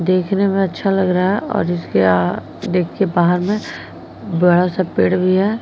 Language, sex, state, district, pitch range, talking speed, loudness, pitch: Hindi, female, Uttar Pradesh, Jyotiba Phule Nagar, 175-195 Hz, 170 wpm, -17 LUFS, 185 Hz